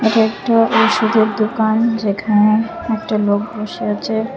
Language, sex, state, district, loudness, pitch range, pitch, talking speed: Bengali, female, Tripura, West Tripura, -16 LUFS, 215-225 Hz, 220 Hz, 125 wpm